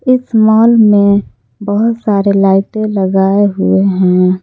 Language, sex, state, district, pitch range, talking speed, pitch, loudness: Hindi, female, Jharkhand, Palamu, 190-220 Hz, 120 wpm, 200 Hz, -10 LUFS